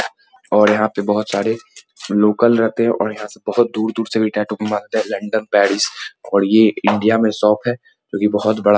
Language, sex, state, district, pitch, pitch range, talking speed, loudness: Hindi, male, Bihar, Muzaffarpur, 105 Hz, 105-110 Hz, 205 wpm, -17 LUFS